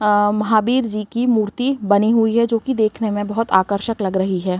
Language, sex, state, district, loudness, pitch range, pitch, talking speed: Hindi, female, Uttar Pradesh, Varanasi, -18 LUFS, 205-230 Hz, 215 Hz, 220 wpm